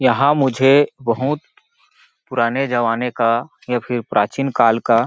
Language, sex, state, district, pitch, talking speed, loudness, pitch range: Hindi, male, Chhattisgarh, Balrampur, 125 Hz, 140 wpm, -18 LUFS, 115-140 Hz